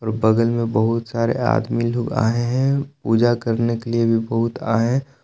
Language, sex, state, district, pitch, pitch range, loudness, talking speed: Hindi, male, Jharkhand, Palamu, 115 Hz, 115-120 Hz, -20 LUFS, 170 wpm